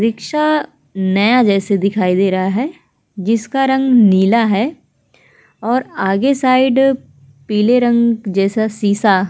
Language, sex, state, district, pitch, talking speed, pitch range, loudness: Hindi, female, Uttar Pradesh, Muzaffarnagar, 220 Hz, 125 wpm, 195-255 Hz, -15 LUFS